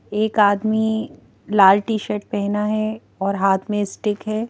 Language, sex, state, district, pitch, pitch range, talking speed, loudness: Hindi, female, Madhya Pradesh, Bhopal, 210 Hz, 205-215 Hz, 145 wpm, -20 LUFS